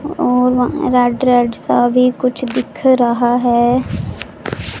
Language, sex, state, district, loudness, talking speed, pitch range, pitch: Hindi, female, Punjab, Pathankot, -14 LUFS, 125 wpm, 245-255 Hz, 250 Hz